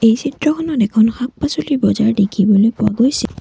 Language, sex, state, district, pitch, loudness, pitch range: Assamese, female, Assam, Sonitpur, 230 Hz, -15 LUFS, 220-280 Hz